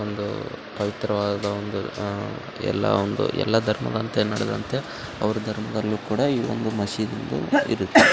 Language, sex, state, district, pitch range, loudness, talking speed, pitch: Kannada, male, Karnataka, Raichur, 100-110 Hz, -25 LUFS, 120 wpm, 105 Hz